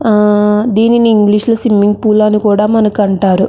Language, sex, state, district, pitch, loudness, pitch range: Telugu, female, Andhra Pradesh, Krishna, 210 Hz, -10 LUFS, 210-220 Hz